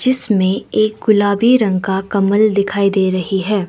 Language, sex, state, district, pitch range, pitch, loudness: Hindi, female, Arunachal Pradesh, Lower Dibang Valley, 195-215 Hz, 200 Hz, -15 LUFS